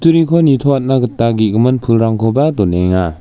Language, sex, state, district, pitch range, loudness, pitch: Garo, male, Meghalaya, West Garo Hills, 110-140 Hz, -13 LUFS, 115 Hz